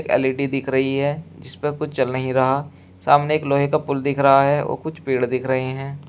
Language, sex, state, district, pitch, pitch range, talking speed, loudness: Hindi, male, Uttar Pradesh, Shamli, 140 Hz, 130-145 Hz, 225 wpm, -20 LUFS